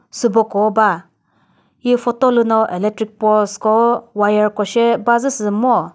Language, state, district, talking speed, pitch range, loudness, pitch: Chakhesang, Nagaland, Dimapur, 150 wpm, 210-235 Hz, -16 LUFS, 220 Hz